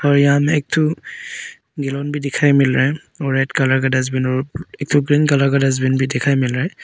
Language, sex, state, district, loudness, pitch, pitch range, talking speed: Hindi, male, Arunachal Pradesh, Papum Pare, -17 LUFS, 140 Hz, 135-150 Hz, 235 wpm